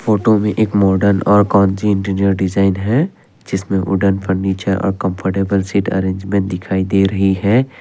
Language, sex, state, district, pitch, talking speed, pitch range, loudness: Hindi, male, Assam, Kamrup Metropolitan, 100 Hz, 155 wpm, 95-100 Hz, -16 LUFS